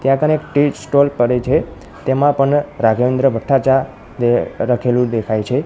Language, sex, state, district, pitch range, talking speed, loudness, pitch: Gujarati, male, Gujarat, Gandhinagar, 120-140 Hz, 160 wpm, -16 LUFS, 130 Hz